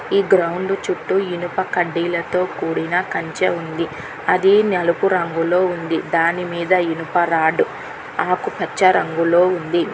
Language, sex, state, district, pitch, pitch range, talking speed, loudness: Telugu, female, Telangana, Hyderabad, 175 Hz, 170-185 Hz, 105 wpm, -19 LUFS